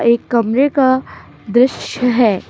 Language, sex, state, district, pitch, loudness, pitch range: Hindi, female, Uttar Pradesh, Ghazipur, 245 Hz, -15 LUFS, 230-260 Hz